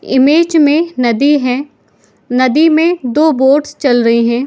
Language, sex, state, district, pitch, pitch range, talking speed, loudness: Hindi, female, Bihar, Madhepura, 275 Hz, 250-310 Hz, 160 wpm, -11 LUFS